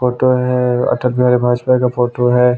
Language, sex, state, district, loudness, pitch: Hindi, male, Chhattisgarh, Sukma, -14 LUFS, 125 Hz